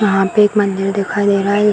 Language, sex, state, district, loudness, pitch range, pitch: Hindi, female, Bihar, Gaya, -15 LUFS, 195-210 Hz, 200 Hz